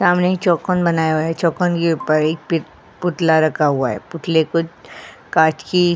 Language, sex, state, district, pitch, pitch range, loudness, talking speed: Hindi, female, Uttar Pradesh, Jyotiba Phule Nagar, 165 Hz, 155-175 Hz, -18 LUFS, 200 wpm